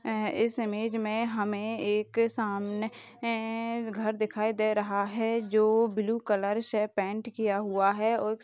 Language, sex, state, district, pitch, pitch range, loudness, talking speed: Hindi, female, Uttar Pradesh, Jalaun, 215 Hz, 210-225 Hz, -29 LUFS, 165 wpm